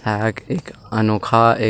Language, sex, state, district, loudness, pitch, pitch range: Hindi, male, Chhattisgarh, Sukma, -19 LUFS, 110 Hz, 105-115 Hz